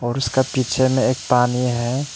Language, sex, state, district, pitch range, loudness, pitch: Hindi, male, Arunachal Pradesh, Papum Pare, 125-130 Hz, -19 LUFS, 125 Hz